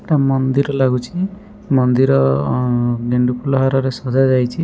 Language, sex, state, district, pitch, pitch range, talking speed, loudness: Odia, male, Odisha, Malkangiri, 130 Hz, 125-140 Hz, 115 wpm, -16 LUFS